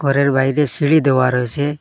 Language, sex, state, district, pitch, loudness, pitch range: Bengali, male, Assam, Hailakandi, 140 Hz, -16 LUFS, 135-145 Hz